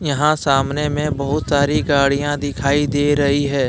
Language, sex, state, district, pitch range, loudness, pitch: Hindi, male, Jharkhand, Deoghar, 140-145 Hz, -18 LUFS, 145 Hz